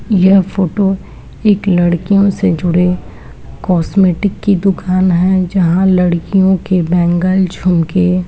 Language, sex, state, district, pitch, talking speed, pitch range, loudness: Hindi, female, Uttarakhand, Uttarkashi, 185 Hz, 115 wpm, 180-195 Hz, -13 LUFS